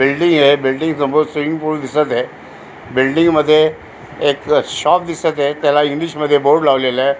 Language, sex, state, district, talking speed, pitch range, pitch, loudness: Marathi, female, Maharashtra, Aurangabad, 125 wpm, 140-155 Hz, 150 Hz, -15 LUFS